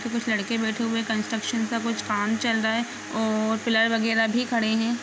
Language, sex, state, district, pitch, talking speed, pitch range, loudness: Hindi, female, Jharkhand, Jamtara, 225 Hz, 215 wpm, 220-230 Hz, -25 LUFS